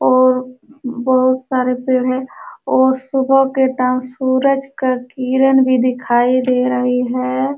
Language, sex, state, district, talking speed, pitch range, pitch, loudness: Hindi, female, Uttar Pradesh, Jalaun, 135 wpm, 255-265 Hz, 255 Hz, -15 LUFS